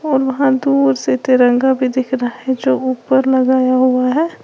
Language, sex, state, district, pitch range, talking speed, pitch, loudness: Hindi, female, Uttar Pradesh, Lalitpur, 255-265 Hz, 190 wpm, 260 Hz, -14 LUFS